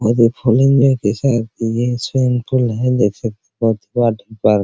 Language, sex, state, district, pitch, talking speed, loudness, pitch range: Hindi, male, Bihar, Araria, 115 Hz, 155 wpm, -16 LUFS, 110-125 Hz